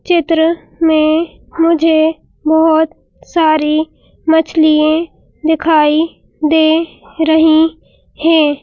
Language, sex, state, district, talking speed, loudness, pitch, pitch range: Hindi, female, Madhya Pradesh, Bhopal, 70 wpm, -13 LUFS, 320 Hz, 315-325 Hz